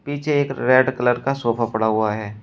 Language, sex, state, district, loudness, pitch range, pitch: Hindi, male, Uttar Pradesh, Shamli, -20 LUFS, 110-135 Hz, 125 Hz